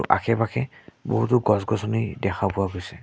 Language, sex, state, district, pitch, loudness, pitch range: Assamese, male, Assam, Sonitpur, 110 Hz, -24 LUFS, 100-115 Hz